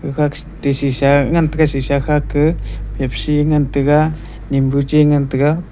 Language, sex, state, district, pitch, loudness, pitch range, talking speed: Wancho, male, Arunachal Pradesh, Longding, 145 Hz, -16 LUFS, 140-150 Hz, 160 wpm